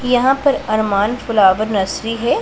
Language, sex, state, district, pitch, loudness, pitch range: Hindi, female, Punjab, Pathankot, 220 Hz, -16 LUFS, 205-245 Hz